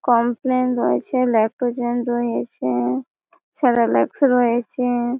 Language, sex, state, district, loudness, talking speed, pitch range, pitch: Bengali, female, West Bengal, Malda, -20 LUFS, 70 wpm, 235-255 Hz, 245 Hz